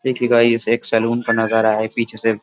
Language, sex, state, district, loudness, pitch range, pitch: Hindi, male, Uttar Pradesh, Jyotiba Phule Nagar, -17 LUFS, 110-120 Hz, 115 Hz